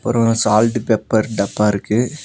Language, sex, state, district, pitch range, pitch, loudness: Tamil, male, Tamil Nadu, Nilgiris, 105-115 Hz, 110 Hz, -17 LUFS